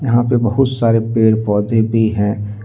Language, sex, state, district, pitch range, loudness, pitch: Hindi, male, Jharkhand, Deoghar, 105-120 Hz, -15 LUFS, 110 Hz